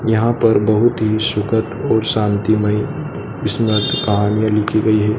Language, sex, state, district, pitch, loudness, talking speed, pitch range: Hindi, male, Madhya Pradesh, Dhar, 110 Hz, -16 LUFS, 140 wpm, 105-115 Hz